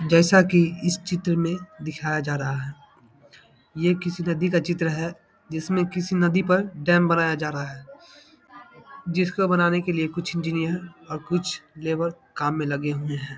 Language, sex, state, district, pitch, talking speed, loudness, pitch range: Hindi, male, Bihar, Samastipur, 170 Hz, 170 wpm, -24 LUFS, 155-180 Hz